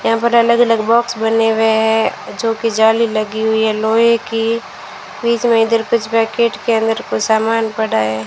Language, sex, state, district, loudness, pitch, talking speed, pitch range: Hindi, female, Rajasthan, Bikaner, -15 LUFS, 225 Hz, 190 wpm, 220-230 Hz